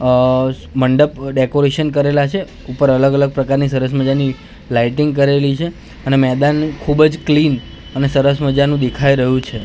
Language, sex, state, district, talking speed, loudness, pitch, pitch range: Gujarati, male, Gujarat, Gandhinagar, 150 wpm, -15 LUFS, 140 Hz, 130-145 Hz